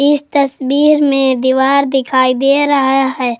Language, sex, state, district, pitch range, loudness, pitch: Hindi, female, Jharkhand, Garhwa, 260-280 Hz, -12 LUFS, 270 Hz